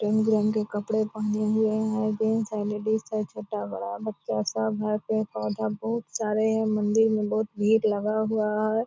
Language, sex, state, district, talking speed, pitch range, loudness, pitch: Hindi, female, Bihar, Purnia, 160 wpm, 210-220 Hz, -26 LUFS, 215 Hz